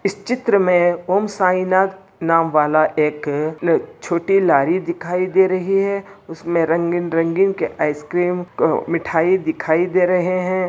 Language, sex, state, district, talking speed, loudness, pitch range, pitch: Hindi, male, Andhra Pradesh, Anantapur, 135 wpm, -18 LUFS, 165-190 Hz, 180 Hz